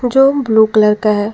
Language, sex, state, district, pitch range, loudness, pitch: Hindi, female, Jharkhand, Garhwa, 215-250 Hz, -12 LUFS, 220 Hz